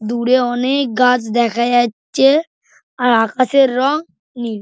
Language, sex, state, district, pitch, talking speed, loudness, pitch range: Bengali, male, West Bengal, Dakshin Dinajpur, 250 Hz, 115 wpm, -15 LUFS, 235-270 Hz